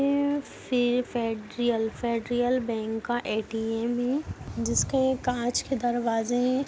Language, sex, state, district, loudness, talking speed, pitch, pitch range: Hindi, female, Bihar, Muzaffarpur, -27 LUFS, 115 wpm, 240 Hz, 225-250 Hz